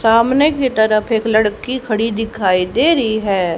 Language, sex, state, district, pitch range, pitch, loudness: Hindi, female, Haryana, Jhajjar, 215-240 Hz, 220 Hz, -15 LUFS